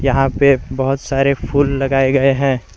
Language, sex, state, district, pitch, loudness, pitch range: Hindi, male, Jharkhand, Garhwa, 135 Hz, -15 LUFS, 135-140 Hz